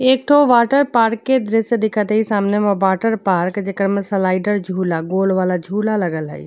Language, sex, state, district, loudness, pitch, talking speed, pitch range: Bhojpuri, female, Uttar Pradesh, Deoria, -17 LUFS, 205 Hz, 185 wpm, 190-225 Hz